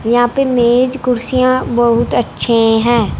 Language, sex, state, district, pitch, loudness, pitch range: Hindi, female, Punjab, Fazilka, 240 Hz, -13 LUFS, 235-255 Hz